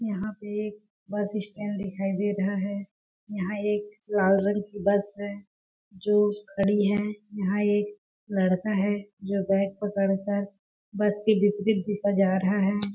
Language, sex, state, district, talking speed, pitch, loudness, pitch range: Hindi, female, Chhattisgarh, Balrampur, 160 wpm, 205 Hz, -27 LUFS, 195-210 Hz